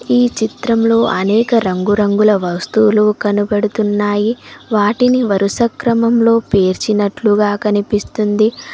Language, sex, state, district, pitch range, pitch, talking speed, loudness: Telugu, female, Telangana, Mahabubabad, 205-230 Hz, 210 Hz, 75 wpm, -14 LUFS